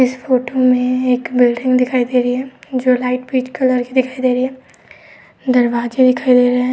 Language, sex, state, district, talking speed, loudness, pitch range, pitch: Hindi, female, Uttar Pradesh, Etah, 205 wpm, -15 LUFS, 250-255 Hz, 255 Hz